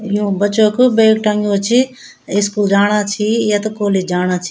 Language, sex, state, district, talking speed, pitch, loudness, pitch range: Garhwali, female, Uttarakhand, Tehri Garhwal, 185 wpm, 210 Hz, -15 LUFS, 200-220 Hz